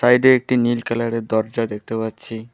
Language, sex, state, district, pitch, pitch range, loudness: Bengali, male, West Bengal, Alipurduar, 115 Hz, 110-120 Hz, -19 LUFS